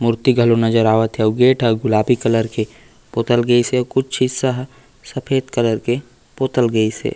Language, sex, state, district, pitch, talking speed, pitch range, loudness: Chhattisgarhi, male, Chhattisgarh, Raigarh, 120 Hz, 200 wpm, 115-130 Hz, -17 LUFS